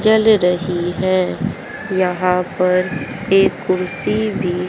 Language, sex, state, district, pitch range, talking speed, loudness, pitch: Hindi, female, Haryana, Jhajjar, 180-195 Hz, 100 wpm, -17 LUFS, 185 Hz